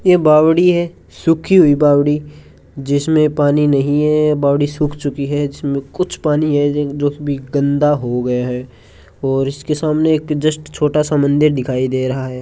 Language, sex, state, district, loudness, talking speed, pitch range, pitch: Hindi, male, Rajasthan, Churu, -15 LUFS, 175 wpm, 140-150 Hz, 145 Hz